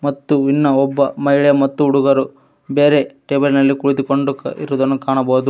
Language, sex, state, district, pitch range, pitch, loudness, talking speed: Kannada, male, Karnataka, Koppal, 135-140 Hz, 140 Hz, -15 LUFS, 130 wpm